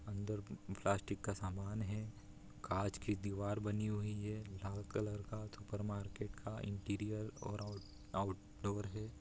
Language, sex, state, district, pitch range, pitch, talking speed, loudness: Hindi, male, Bihar, Saran, 100-105 Hz, 100 Hz, 145 wpm, -43 LUFS